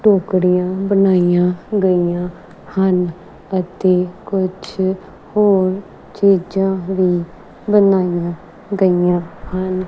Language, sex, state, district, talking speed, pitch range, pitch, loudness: Punjabi, female, Punjab, Kapurthala, 75 wpm, 180-195 Hz, 185 Hz, -17 LUFS